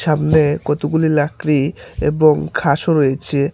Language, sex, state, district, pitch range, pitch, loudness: Bengali, male, Tripura, Unakoti, 145-155 Hz, 150 Hz, -16 LUFS